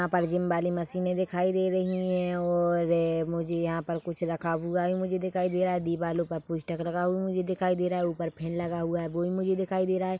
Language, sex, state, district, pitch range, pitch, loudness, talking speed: Hindi, female, Chhattisgarh, Bilaspur, 170-185 Hz, 175 Hz, -29 LUFS, 255 wpm